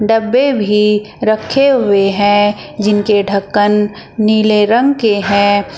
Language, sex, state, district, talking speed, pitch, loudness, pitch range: Hindi, female, Uttar Pradesh, Shamli, 115 wpm, 210 Hz, -12 LUFS, 205-220 Hz